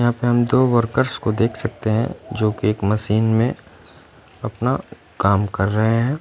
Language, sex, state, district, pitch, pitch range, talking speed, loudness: Hindi, male, Punjab, Fazilka, 110 Hz, 105-120 Hz, 175 wpm, -19 LUFS